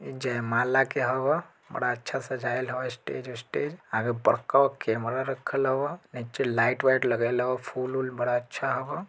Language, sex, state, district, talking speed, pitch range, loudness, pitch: Bajjika, male, Bihar, Vaishali, 185 wpm, 120-135 Hz, -27 LUFS, 130 Hz